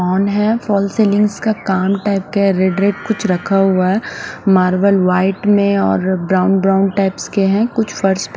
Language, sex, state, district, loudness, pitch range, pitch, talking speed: Hindi, male, Punjab, Fazilka, -15 LUFS, 190-205 Hz, 195 Hz, 195 wpm